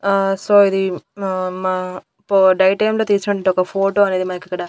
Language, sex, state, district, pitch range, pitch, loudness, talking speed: Telugu, female, Andhra Pradesh, Annamaya, 185-200 Hz, 195 Hz, -17 LUFS, 180 wpm